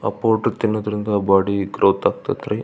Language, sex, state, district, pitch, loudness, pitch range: Kannada, male, Karnataka, Belgaum, 100 Hz, -19 LUFS, 100-110 Hz